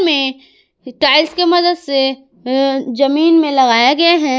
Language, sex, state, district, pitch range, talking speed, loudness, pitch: Hindi, female, Jharkhand, Garhwa, 265-330 Hz, 150 wpm, -13 LUFS, 275 Hz